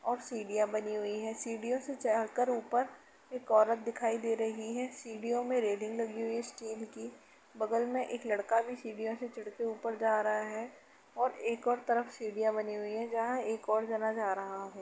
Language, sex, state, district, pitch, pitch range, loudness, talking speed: Hindi, female, Uttar Pradesh, Etah, 225 Hz, 220-240 Hz, -34 LUFS, 210 wpm